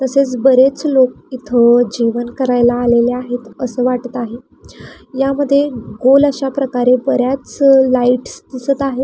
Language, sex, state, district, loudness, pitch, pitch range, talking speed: Marathi, female, Maharashtra, Pune, -14 LUFS, 255 Hz, 245-270 Hz, 125 wpm